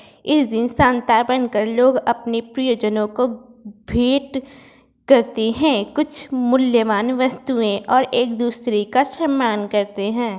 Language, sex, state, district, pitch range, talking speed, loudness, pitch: Hindi, female, Uttar Pradesh, Varanasi, 225-260 Hz, 120 wpm, -18 LUFS, 245 Hz